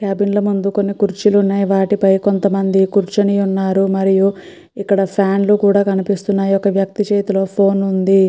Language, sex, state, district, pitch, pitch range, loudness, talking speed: Telugu, female, Andhra Pradesh, Guntur, 195 Hz, 195-200 Hz, -15 LUFS, 150 wpm